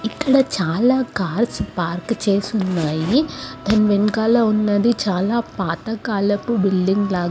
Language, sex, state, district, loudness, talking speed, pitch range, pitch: Telugu, female, Andhra Pradesh, Srikakulam, -19 LUFS, 115 wpm, 190-230 Hz, 210 Hz